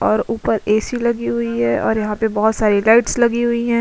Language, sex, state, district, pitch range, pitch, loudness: Hindi, female, Uttar Pradesh, Budaun, 210-235 Hz, 220 Hz, -17 LUFS